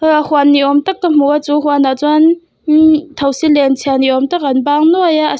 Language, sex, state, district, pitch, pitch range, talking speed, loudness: Mizo, female, Mizoram, Aizawl, 295 Hz, 280-315 Hz, 245 wpm, -12 LUFS